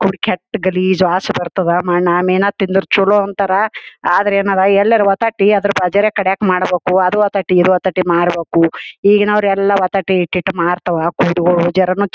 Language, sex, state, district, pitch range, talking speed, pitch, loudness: Kannada, female, Karnataka, Gulbarga, 180-200 Hz, 135 wpm, 190 Hz, -14 LUFS